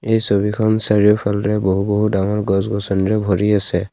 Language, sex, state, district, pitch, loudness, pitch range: Assamese, male, Assam, Kamrup Metropolitan, 105 Hz, -17 LUFS, 100-105 Hz